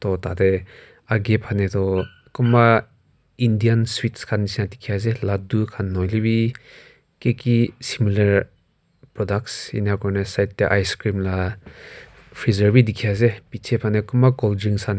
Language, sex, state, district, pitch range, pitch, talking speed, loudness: Nagamese, male, Nagaland, Kohima, 100-115 Hz, 105 Hz, 130 wpm, -21 LUFS